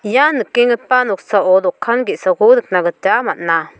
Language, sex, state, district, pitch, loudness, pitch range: Garo, female, Meghalaya, South Garo Hills, 240 Hz, -14 LUFS, 185-280 Hz